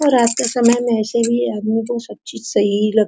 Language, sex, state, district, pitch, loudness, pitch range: Hindi, female, Bihar, Araria, 235 Hz, -17 LUFS, 220-240 Hz